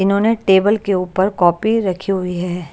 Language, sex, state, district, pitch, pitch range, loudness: Hindi, female, Chhattisgarh, Raipur, 190 Hz, 180-205 Hz, -16 LUFS